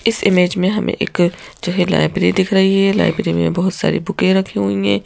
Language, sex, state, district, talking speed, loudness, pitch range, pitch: Hindi, female, Madhya Pradesh, Bhopal, 225 wpm, -16 LUFS, 170-195 Hz, 185 Hz